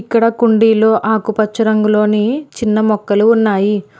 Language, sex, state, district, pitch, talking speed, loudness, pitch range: Telugu, female, Telangana, Hyderabad, 220 Hz, 105 wpm, -13 LUFS, 210-225 Hz